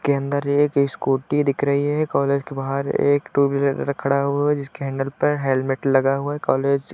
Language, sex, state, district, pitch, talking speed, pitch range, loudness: Hindi, male, Uttar Pradesh, Deoria, 140 Hz, 215 wpm, 135-145 Hz, -21 LUFS